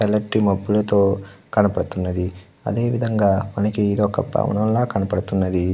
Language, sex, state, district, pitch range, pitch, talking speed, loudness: Telugu, male, Andhra Pradesh, Krishna, 95-105 Hz, 100 Hz, 85 wpm, -20 LUFS